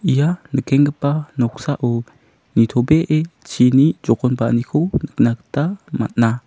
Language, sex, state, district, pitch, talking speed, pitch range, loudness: Garo, male, Meghalaya, South Garo Hills, 135 Hz, 85 wpm, 120-150 Hz, -18 LUFS